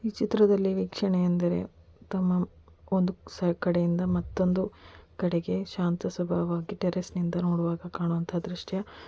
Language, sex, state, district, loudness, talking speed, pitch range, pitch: Kannada, female, Karnataka, Dakshina Kannada, -28 LUFS, 100 wpm, 170-190 Hz, 180 Hz